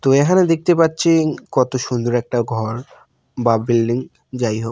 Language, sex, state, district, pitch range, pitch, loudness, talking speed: Bengali, male, West Bengal, Malda, 120-160 Hz, 125 Hz, -18 LUFS, 150 wpm